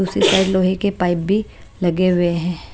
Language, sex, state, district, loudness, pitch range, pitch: Hindi, female, Punjab, Kapurthala, -18 LUFS, 175-190 Hz, 185 Hz